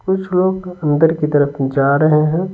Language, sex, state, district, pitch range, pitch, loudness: Hindi, male, Bihar, Patna, 145-185 Hz, 155 Hz, -15 LUFS